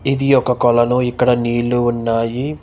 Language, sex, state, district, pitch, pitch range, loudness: Telugu, male, Telangana, Hyderabad, 120 Hz, 120-125 Hz, -16 LUFS